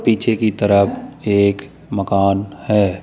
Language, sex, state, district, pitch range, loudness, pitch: Hindi, male, Rajasthan, Jaipur, 100-110 Hz, -17 LUFS, 100 Hz